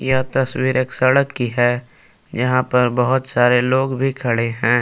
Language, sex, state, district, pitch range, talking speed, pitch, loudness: Hindi, male, Jharkhand, Palamu, 120-130 Hz, 175 wpm, 125 Hz, -18 LUFS